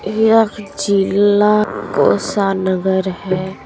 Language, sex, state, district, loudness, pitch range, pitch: Maithili, female, Bihar, Supaul, -15 LUFS, 190-210 Hz, 200 Hz